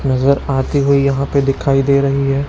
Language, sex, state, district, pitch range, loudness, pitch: Hindi, male, Chhattisgarh, Raipur, 135-140 Hz, -15 LUFS, 140 Hz